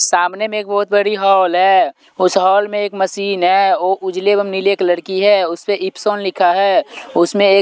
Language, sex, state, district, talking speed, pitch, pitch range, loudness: Hindi, male, Punjab, Pathankot, 210 wpm, 195 Hz, 185-205 Hz, -15 LUFS